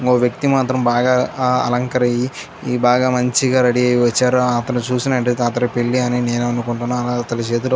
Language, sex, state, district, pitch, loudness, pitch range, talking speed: Telugu, male, Andhra Pradesh, Chittoor, 125 Hz, -17 LUFS, 120-125 Hz, 155 wpm